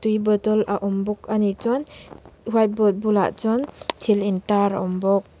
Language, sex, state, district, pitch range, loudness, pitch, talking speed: Mizo, female, Mizoram, Aizawl, 200-220 Hz, -22 LUFS, 210 Hz, 190 wpm